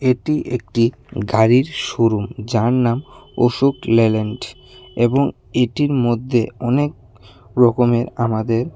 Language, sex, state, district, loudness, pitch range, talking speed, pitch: Bengali, male, Tripura, West Tripura, -18 LUFS, 115-125 Hz, 95 wpm, 120 Hz